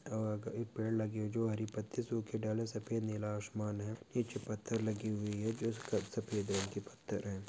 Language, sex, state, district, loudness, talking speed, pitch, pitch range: Hindi, male, Maharashtra, Dhule, -39 LUFS, 210 wpm, 110 Hz, 105-115 Hz